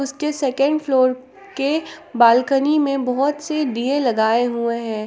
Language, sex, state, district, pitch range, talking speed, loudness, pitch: Hindi, female, Jharkhand, Palamu, 240-295 Hz, 140 wpm, -19 LUFS, 275 Hz